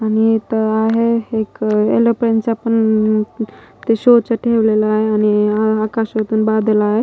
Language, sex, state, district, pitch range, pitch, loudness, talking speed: Marathi, female, Maharashtra, Mumbai Suburban, 215-225 Hz, 220 Hz, -15 LUFS, 135 wpm